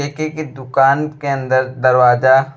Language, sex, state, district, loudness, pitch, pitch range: Bhojpuri, male, Uttar Pradesh, Deoria, -15 LUFS, 135 Hz, 130-145 Hz